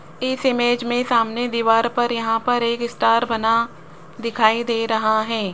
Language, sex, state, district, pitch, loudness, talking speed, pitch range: Hindi, female, Rajasthan, Jaipur, 230 Hz, -20 LUFS, 160 wpm, 225-240 Hz